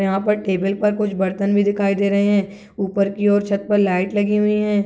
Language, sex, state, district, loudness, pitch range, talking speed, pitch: Hindi, male, Chhattisgarh, Kabirdham, -19 LUFS, 195-205 Hz, 245 wpm, 200 Hz